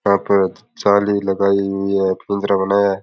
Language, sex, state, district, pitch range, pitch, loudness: Rajasthani, male, Rajasthan, Nagaur, 95-100 Hz, 100 Hz, -17 LUFS